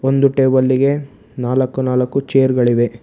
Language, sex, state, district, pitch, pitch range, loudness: Kannada, male, Karnataka, Bangalore, 130 Hz, 125-135 Hz, -16 LUFS